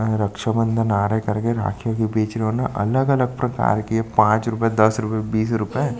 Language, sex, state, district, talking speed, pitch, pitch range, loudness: Hindi, male, Chhattisgarh, Sukma, 220 wpm, 110 Hz, 110-115 Hz, -20 LUFS